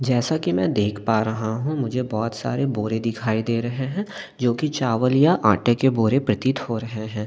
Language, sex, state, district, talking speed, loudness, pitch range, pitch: Hindi, male, Delhi, New Delhi, 215 wpm, -22 LUFS, 110-130 Hz, 115 Hz